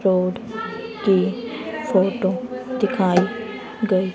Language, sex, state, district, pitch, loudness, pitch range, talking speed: Hindi, female, Haryana, Rohtak, 210 Hz, -22 LUFS, 185-225 Hz, 70 wpm